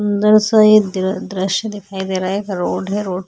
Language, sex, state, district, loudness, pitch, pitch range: Hindi, female, Maharashtra, Chandrapur, -16 LUFS, 195 Hz, 190-210 Hz